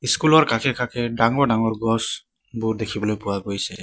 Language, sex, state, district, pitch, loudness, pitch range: Assamese, male, Assam, Sonitpur, 115 Hz, -21 LUFS, 110-125 Hz